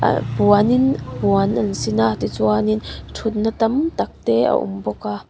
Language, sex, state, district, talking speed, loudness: Mizo, female, Mizoram, Aizawl, 190 wpm, -19 LUFS